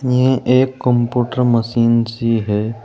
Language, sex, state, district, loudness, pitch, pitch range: Hindi, male, Uttar Pradesh, Saharanpur, -16 LUFS, 120 Hz, 115-125 Hz